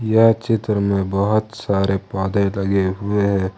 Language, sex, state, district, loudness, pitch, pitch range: Hindi, male, Jharkhand, Ranchi, -19 LUFS, 100 Hz, 95-110 Hz